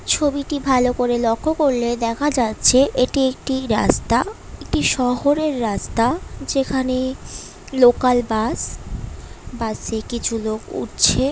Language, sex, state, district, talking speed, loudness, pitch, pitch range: Bengali, female, West Bengal, Paschim Medinipur, 110 wpm, -19 LUFS, 250 Hz, 235-275 Hz